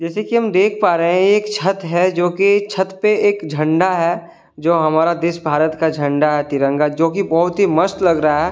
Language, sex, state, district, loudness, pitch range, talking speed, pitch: Hindi, male, Delhi, New Delhi, -16 LUFS, 155-195 Hz, 230 wpm, 170 Hz